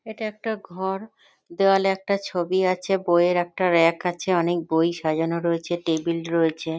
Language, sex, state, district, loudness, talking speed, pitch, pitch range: Bengali, female, West Bengal, North 24 Parganas, -23 LUFS, 160 wpm, 175 Hz, 170-195 Hz